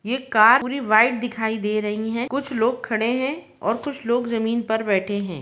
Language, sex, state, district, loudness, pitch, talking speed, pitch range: Hindi, female, Jharkhand, Jamtara, -21 LUFS, 230 Hz, 210 wpm, 215-250 Hz